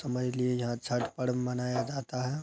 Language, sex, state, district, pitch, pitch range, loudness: Hindi, female, Bihar, Araria, 125 Hz, 125-130 Hz, -32 LUFS